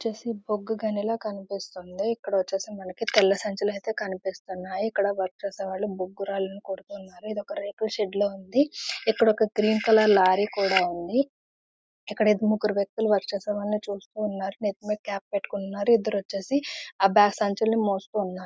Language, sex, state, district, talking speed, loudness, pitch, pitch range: Telugu, female, Andhra Pradesh, Visakhapatnam, 155 wpm, -26 LUFS, 205 Hz, 195-215 Hz